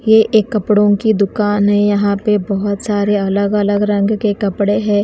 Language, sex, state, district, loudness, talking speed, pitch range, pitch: Hindi, female, Haryana, Charkhi Dadri, -14 LUFS, 190 wpm, 205-210 Hz, 205 Hz